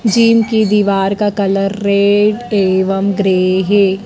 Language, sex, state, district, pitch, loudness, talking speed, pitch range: Hindi, male, Madhya Pradesh, Dhar, 200 Hz, -13 LUFS, 135 wpm, 195-210 Hz